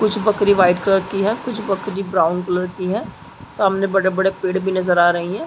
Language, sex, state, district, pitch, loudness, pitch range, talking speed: Hindi, female, Chhattisgarh, Sarguja, 195 Hz, -18 LUFS, 185-200 Hz, 230 wpm